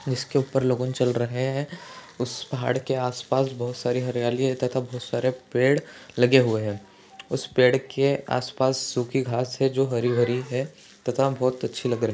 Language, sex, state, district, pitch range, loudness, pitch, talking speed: Hindi, male, Maharashtra, Solapur, 120-135 Hz, -25 LUFS, 125 Hz, 190 wpm